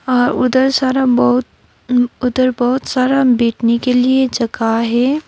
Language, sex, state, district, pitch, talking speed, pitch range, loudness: Hindi, female, West Bengal, Darjeeling, 250 Hz, 135 wpm, 245-260 Hz, -14 LUFS